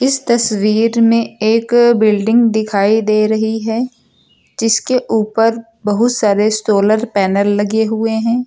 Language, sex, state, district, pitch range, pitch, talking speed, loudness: Hindi, female, Uttar Pradesh, Lucknow, 215-230 Hz, 220 Hz, 125 wpm, -14 LUFS